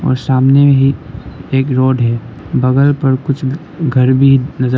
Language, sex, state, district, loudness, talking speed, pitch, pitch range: Hindi, male, Arunachal Pradesh, Lower Dibang Valley, -12 LUFS, 150 wpm, 135 Hz, 130-140 Hz